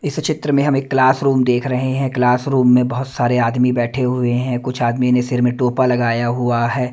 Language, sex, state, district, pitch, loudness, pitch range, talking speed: Hindi, male, Bihar, Katihar, 125 Hz, -17 LUFS, 125-130 Hz, 240 wpm